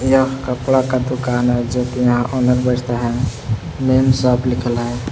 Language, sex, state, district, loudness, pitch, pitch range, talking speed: Hindi, male, Jharkhand, Palamu, -17 LUFS, 125 Hz, 120-130 Hz, 175 wpm